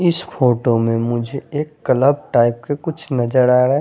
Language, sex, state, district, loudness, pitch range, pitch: Hindi, male, Chandigarh, Chandigarh, -17 LUFS, 120-145 Hz, 130 Hz